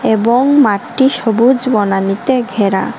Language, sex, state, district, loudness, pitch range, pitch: Bengali, male, Tripura, West Tripura, -13 LUFS, 205-260 Hz, 235 Hz